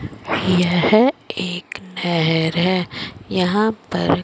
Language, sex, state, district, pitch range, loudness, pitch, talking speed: Hindi, male, Punjab, Fazilka, 165-190 Hz, -19 LUFS, 180 Hz, 100 wpm